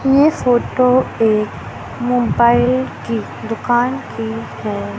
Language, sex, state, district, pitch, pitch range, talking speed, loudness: Hindi, male, Madhya Pradesh, Katni, 240 Hz, 210-250 Hz, 95 wpm, -17 LUFS